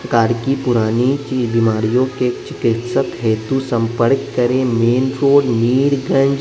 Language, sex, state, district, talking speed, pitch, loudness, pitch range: Hindi, male, Bihar, West Champaran, 120 wpm, 125 Hz, -16 LUFS, 115-135 Hz